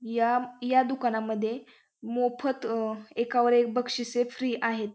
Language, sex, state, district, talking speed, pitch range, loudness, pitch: Marathi, female, Maharashtra, Pune, 110 wpm, 230-245 Hz, -28 LUFS, 240 Hz